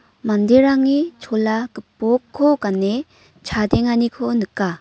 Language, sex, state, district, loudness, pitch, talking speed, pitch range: Garo, female, Meghalaya, North Garo Hills, -18 LUFS, 235 Hz, 75 wpm, 215-265 Hz